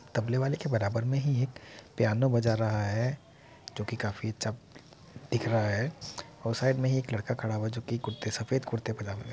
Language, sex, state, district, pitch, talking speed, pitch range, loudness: Hindi, male, Uttar Pradesh, Muzaffarnagar, 115 Hz, 220 wpm, 110-130 Hz, -31 LUFS